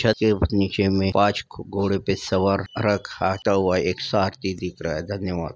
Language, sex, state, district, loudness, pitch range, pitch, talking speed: Hindi, male, Bihar, Madhepura, -23 LUFS, 95-100 Hz, 100 Hz, 185 wpm